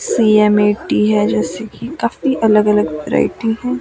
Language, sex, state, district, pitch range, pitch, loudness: Hindi, female, Himachal Pradesh, Shimla, 210-225 Hz, 210 Hz, -15 LUFS